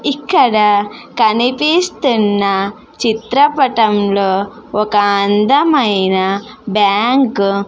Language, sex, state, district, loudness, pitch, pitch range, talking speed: Telugu, female, Andhra Pradesh, Sri Satya Sai, -13 LUFS, 215 Hz, 200-265 Hz, 60 wpm